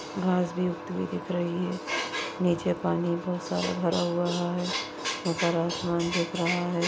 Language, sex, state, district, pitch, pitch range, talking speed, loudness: Hindi, female, Chhattisgarh, Bastar, 175 Hz, 170-180 Hz, 165 wpm, -28 LUFS